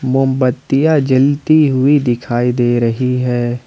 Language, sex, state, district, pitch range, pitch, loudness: Hindi, male, Jharkhand, Ranchi, 120-140 Hz, 130 Hz, -14 LUFS